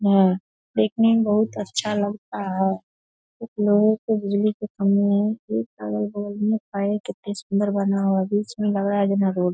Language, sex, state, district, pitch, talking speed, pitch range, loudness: Hindi, female, Bihar, Darbhanga, 205 Hz, 100 wpm, 195-210 Hz, -22 LUFS